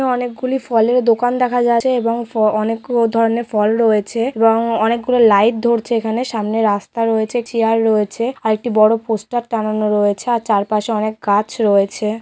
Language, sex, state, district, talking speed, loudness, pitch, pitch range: Bengali, female, West Bengal, Malda, 145 wpm, -16 LUFS, 225 Hz, 215-235 Hz